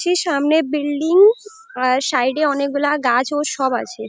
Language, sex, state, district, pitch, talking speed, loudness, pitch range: Bengali, female, West Bengal, Jalpaiguri, 290 Hz, 175 wpm, -17 LUFS, 260-320 Hz